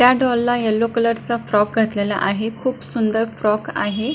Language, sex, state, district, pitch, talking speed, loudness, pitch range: Marathi, female, Maharashtra, Pune, 225 Hz, 160 wpm, -19 LUFS, 215-240 Hz